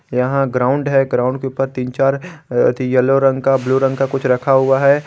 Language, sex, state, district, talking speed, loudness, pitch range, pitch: Hindi, male, Jharkhand, Garhwa, 225 wpm, -16 LUFS, 130-135 Hz, 135 Hz